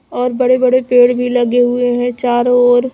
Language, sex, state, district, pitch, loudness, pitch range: Hindi, female, Chhattisgarh, Raipur, 245 Hz, -13 LUFS, 245-250 Hz